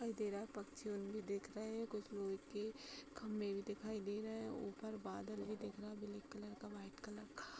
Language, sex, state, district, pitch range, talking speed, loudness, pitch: Hindi, female, Uttar Pradesh, Hamirpur, 205-220 Hz, 220 wpm, -48 LUFS, 210 Hz